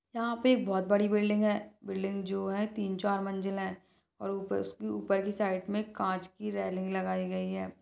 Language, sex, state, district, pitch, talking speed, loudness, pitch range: Hindi, female, Chhattisgarh, Balrampur, 195 Hz, 190 wpm, -32 LUFS, 185-210 Hz